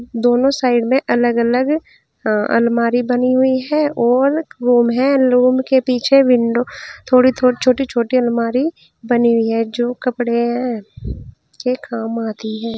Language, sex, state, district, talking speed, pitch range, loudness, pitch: Hindi, female, Uttar Pradesh, Saharanpur, 145 wpm, 235-255 Hz, -16 LUFS, 245 Hz